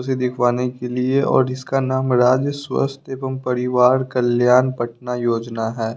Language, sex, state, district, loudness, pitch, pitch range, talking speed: Hindi, male, Bihar, West Champaran, -19 LUFS, 125 Hz, 125-130 Hz, 150 wpm